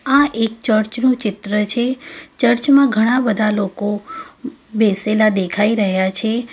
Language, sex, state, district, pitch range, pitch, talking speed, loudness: Gujarati, female, Gujarat, Valsad, 210-255 Hz, 225 Hz, 140 wpm, -17 LUFS